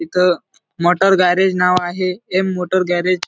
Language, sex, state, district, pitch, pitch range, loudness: Marathi, male, Maharashtra, Dhule, 180 Hz, 180-185 Hz, -16 LUFS